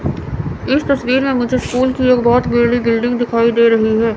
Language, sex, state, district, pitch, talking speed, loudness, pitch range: Hindi, female, Chandigarh, Chandigarh, 240 Hz, 200 wpm, -15 LUFS, 230-255 Hz